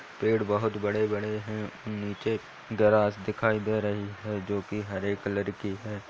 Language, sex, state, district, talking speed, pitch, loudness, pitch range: Hindi, male, Bihar, Lakhisarai, 165 wpm, 105 Hz, -29 LUFS, 100-110 Hz